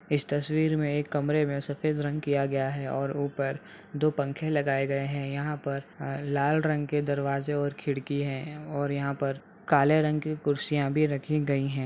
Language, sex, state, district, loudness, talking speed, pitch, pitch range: Hindi, male, Uttar Pradesh, Etah, -29 LUFS, 200 wpm, 145 Hz, 140-150 Hz